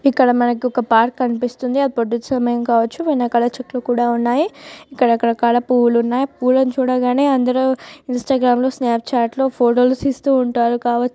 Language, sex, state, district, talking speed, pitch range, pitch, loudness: Telugu, female, Telangana, Nalgonda, 155 wpm, 240-260 Hz, 250 Hz, -17 LUFS